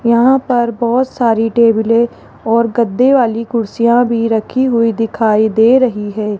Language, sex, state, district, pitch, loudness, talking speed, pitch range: Hindi, female, Rajasthan, Jaipur, 235 Hz, -13 LUFS, 150 wpm, 225-245 Hz